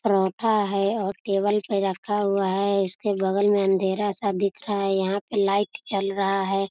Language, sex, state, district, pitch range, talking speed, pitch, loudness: Hindi, female, Bihar, Sitamarhi, 195-205 Hz, 195 wpm, 200 Hz, -24 LUFS